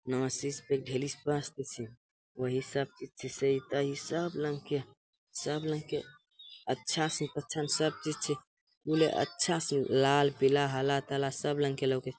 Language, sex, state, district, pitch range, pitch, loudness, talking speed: Angika, male, Bihar, Bhagalpur, 135-150 Hz, 140 Hz, -32 LUFS, 100 wpm